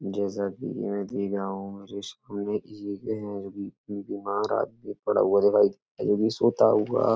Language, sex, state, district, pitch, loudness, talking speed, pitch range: Hindi, male, Uttar Pradesh, Etah, 100 Hz, -27 LUFS, 200 wpm, 100-105 Hz